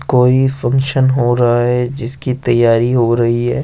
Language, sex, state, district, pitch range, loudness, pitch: Hindi, male, Rajasthan, Jaipur, 120-130 Hz, -14 LUFS, 125 Hz